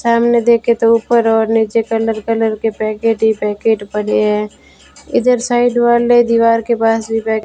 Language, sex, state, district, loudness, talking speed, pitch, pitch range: Hindi, female, Rajasthan, Bikaner, -14 LUFS, 185 wpm, 225 Hz, 220-235 Hz